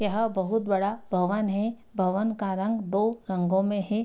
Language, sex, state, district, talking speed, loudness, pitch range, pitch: Hindi, female, Bihar, Darbhanga, 180 wpm, -27 LUFS, 195-220 Hz, 205 Hz